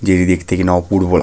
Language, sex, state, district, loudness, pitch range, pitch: Bengali, male, West Bengal, Malda, -15 LUFS, 90-95 Hz, 90 Hz